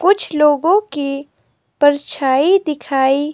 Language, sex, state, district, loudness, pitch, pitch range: Hindi, female, Himachal Pradesh, Shimla, -15 LUFS, 290 Hz, 280-320 Hz